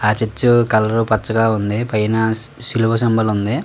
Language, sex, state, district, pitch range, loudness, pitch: Telugu, male, Telangana, Karimnagar, 110-115 Hz, -17 LUFS, 110 Hz